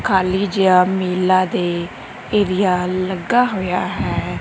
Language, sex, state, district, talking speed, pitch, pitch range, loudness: Punjabi, female, Punjab, Kapurthala, 110 wpm, 185 Hz, 180-195 Hz, -18 LUFS